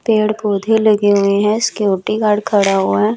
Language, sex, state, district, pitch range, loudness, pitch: Hindi, female, Chandigarh, Chandigarh, 200-215 Hz, -14 LUFS, 210 Hz